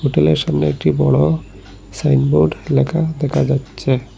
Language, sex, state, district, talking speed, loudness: Bengali, male, Assam, Hailakandi, 100 wpm, -16 LUFS